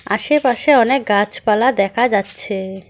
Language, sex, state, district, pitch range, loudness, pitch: Bengali, female, West Bengal, Cooch Behar, 200-255 Hz, -16 LUFS, 210 Hz